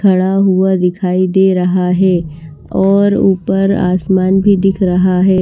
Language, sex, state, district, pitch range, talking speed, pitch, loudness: Hindi, female, Maharashtra, Washim, 180-195 Hz, 145 wpm, 185 Hz, -12 LUFS